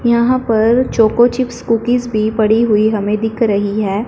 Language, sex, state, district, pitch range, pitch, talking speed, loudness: Hindi, female, Punjab, Fazilka, 215-240 Hz, 225 Hz, 175 wpm, -14 LUFS